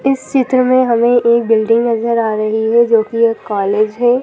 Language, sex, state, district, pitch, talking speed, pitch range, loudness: Hindi, female, Madhya Pradesh, Bhopal, 235 Hz, 210 wpm, 220-245 Hz, -13 LUFS